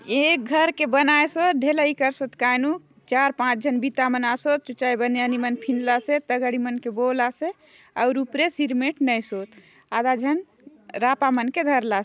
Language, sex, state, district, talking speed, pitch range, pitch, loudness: Halbi, female, Chhattisgarh, Bastar, 135 wpm, 245-290 Hz, 260 Hz, -22 LUFS